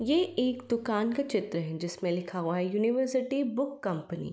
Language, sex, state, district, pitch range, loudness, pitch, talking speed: Hindi, female, Uttar Pradesh, Varanasi, 180-260 Hz, -30 LUFS, 220 Hz, 195 wpm